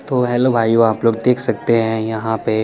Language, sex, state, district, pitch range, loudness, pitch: Hindi, male, Chandigarh, Chandigarh, 110-125 Hz, -16 LUFS, 115 Hz